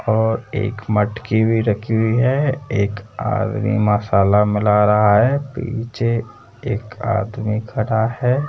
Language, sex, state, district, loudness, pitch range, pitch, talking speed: Hindi, male, Rajasthan, Jaipur, -18 LUFS, 105-115 Hz, 110 Hz, 125 wpm